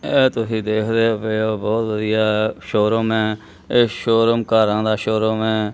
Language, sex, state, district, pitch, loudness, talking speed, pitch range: Punjabi, male, Punjab, Kapurthala, 110 Hz, -18 LUFS, 155 wpm, 110-115 Hz